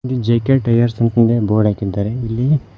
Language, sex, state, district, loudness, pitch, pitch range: Kannada, male, Karnataka, Koppal, -16 LUFS, 115 Hz, 110-125 Hz